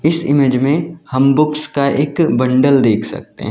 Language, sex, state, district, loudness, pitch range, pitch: Hindi, male, Uttar Pradesh, Lalitpur, -14 LUFS, 130-155 Hz, 140 Hz